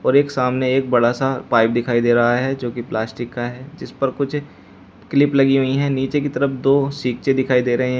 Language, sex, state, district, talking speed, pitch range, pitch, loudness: Hindi, male, Uttar Pradesh, Shamli, 240 wpm, 120-135 Hz, 130 Hz, -19 LUFS